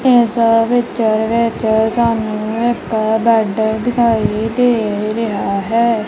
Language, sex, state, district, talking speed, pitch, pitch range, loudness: Punjabi, female, Punjab, Kapurthala, 100 wpm, 225 Hz, 220-235 Hz, -15 LUFS